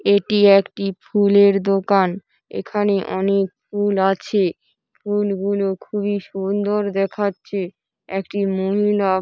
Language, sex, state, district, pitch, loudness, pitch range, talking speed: Bengali, female, West Bengal, Paschim Medinipur, 200 Hz, -19 LUFS, 195-205 Hz, 100 wpm